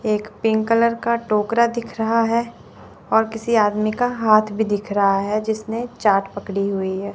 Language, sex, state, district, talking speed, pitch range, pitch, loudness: Hindi, female, Chandigarh, Chandigarh, 195 wpm, 205-230 Hz, 220 Hz, -20 LUFS